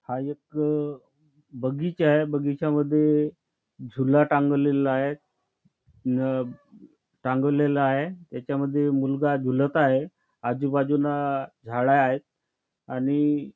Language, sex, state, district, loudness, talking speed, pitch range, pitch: Marathi, male, Maharashtra, Chandrapur, -24 LUFS, 95 wpm, 135-150 Hz, 145 Hz